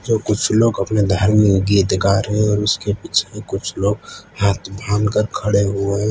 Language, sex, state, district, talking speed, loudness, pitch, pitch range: Hindi, male, Gujarat, Valsad, 195 wpm, -18 LUFS, 105 Hz, 100-105 Hz